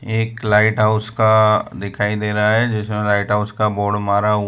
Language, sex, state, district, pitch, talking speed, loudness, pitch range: Hindi, male, Gujarat, Valsad, 105 Hz, 200 wpm, -17 LUFS, 105-110 Hz